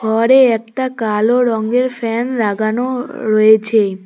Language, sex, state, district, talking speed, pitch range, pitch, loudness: Bengali, female, West Bengal, Cooch Behar, 105 wpm, 220-250 Hz, 225 Hz, -15 LUFS